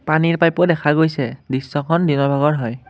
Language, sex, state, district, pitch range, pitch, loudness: Assamese, male, Assam, Kamrup Metropolitan, 135-165 Hz, 150 Hz, -18 LUFS